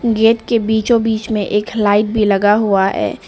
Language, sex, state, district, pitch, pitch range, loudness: Hindi, female, Arunachal Pradesh, Papum Pare, 215 Hz, 205-225 Hz, -15 LUFS